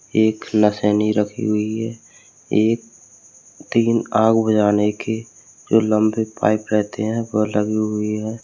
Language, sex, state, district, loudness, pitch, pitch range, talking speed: Hindi, male, Uttar Pradesh, Lalitpur, -19 LUFS, 110 Hz, 105-110 Hz, 135 wpm